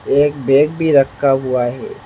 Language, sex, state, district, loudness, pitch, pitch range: Hindi, male, Assam, Hailakandi, -15 LUFS, 135 Hz, 130-145 Hz